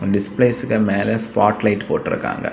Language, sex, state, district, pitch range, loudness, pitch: Tamil, male, Tamil Nadu, Kanyakumari, 100-115 Hz, -19 LUFS, 105 Hz